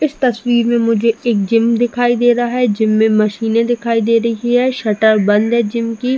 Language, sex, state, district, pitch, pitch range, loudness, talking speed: Hindi, female, Uttar Pradesh, Jalaun, 230 Hz, 225-240 Hz, -14 LUFS, 215 wpm